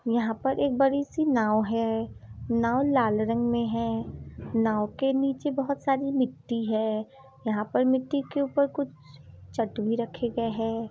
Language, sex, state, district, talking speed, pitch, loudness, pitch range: Hindi, female, Bihar, Saran, 165 wpm, 230 Hz, -27 LUFS, 220-270 Hz